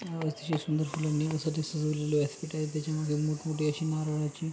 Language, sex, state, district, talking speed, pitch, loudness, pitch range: Marathi, male, Maharashtra, Pune, 145 wpm, 155 Hz, -31 LUFS, 150-155 Hz